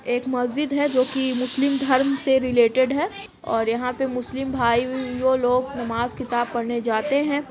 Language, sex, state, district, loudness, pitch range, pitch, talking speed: Hindi, female, Uttar Pradesh, Etah, -22 LUFS, 245-270 Hz, 255 Hz, 170 wpm